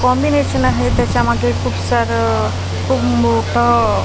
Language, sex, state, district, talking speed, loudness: Marathi, female, Maharashtra, Washim, 120 wpm, -15 LUFS